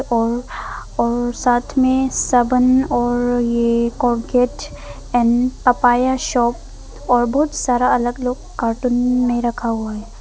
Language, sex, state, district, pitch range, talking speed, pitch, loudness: Hindi, female, Arunachal Pradesh, Papum Pare, 240-250 Hz, 125 wpm, 245 Hz, -18 LUFS